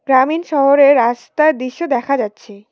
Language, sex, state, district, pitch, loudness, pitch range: Bengali, female, West Bengal, Cooch Behar, 275 Hz, -14 LUFS, 240-285 Hz